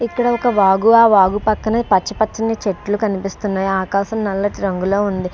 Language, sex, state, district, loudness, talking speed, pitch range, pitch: Telugu, female, Andhra Pradesh, Srikakulam, -16 LUFS, 155 wpm, 195-220 Hz, 205 Hz